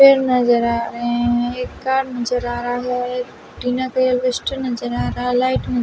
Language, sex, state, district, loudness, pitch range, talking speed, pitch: Hindi, female, Bihar, West Champaran, -19 LUFS, 240-255 Hz, 205 wpm, 250 Hz